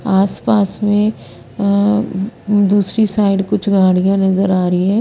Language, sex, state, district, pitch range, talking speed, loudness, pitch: Hindi, female, Chandigarh, Chandigarh, 195-210 Hz, 130 wpm, -15 LUFS, 200 Hz